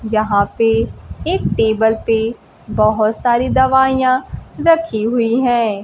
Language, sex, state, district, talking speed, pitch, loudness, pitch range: Hindi, female, Bihar, Kaimur, 115 wpm, 225 Hz, -15 LUFS, 215-245 Hz